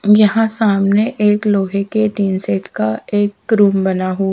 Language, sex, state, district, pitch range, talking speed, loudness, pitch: Hindi, female, Punjab, Pathankot, 190-210 Hz, 165 wpm, -15 LUFS, 205 Hz